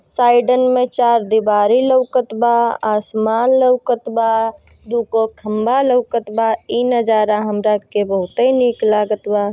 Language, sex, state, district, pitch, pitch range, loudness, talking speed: Bhojpuri, female, Bihar, Gopalganj, 230 Hz, 215-245 Hz, -16 LUFS, 145 wpm